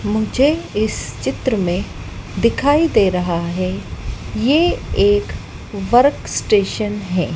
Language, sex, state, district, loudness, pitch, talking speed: Hindi, female, Madhya Pradesh, Dhar, -17 LUFS, 200 Hz, 105 wpm